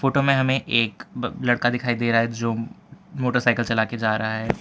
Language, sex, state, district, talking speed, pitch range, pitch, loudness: Hindi, male, Gujarat, Valsad, 210 wpm, 115-125 Hz, 120 Hz, -22 LUFS